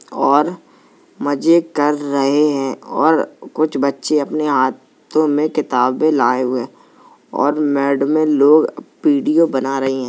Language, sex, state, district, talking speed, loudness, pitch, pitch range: Hindi, male, Uttar Pradesh, Jalaun, 130 wpm, -16 LUFS, 145 Hz, 135-155 Hz